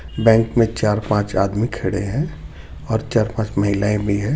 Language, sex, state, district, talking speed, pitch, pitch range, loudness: Hindi, male, Jharkhand, Ranchi, 150 wpm, 105 Hz, 100-115 Hz, -19 LUFS